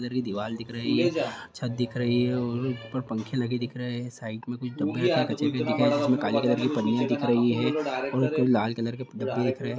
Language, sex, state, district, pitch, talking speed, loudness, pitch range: Hindi, male, Bihar, Jahanabad, 125 Hz, 275 wpm, -27 LUFS, 120-125 Hz